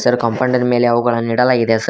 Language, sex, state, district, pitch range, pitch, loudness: Kannada, male, Karnataka, Koppal, 115-125 Hz, 120 Hz, -15 LUFS